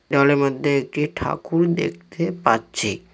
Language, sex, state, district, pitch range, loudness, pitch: Bengali, male, West Bengal, Cooch Behar, 135-165 Hz, -21 LUFS, 140 Hz